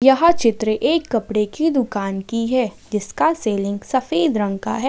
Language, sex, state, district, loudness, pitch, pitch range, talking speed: Hindi, female, Jharkhand, Ranchi, -19 LUFS, 230 Hz, 210-270 Hz, 170 wpm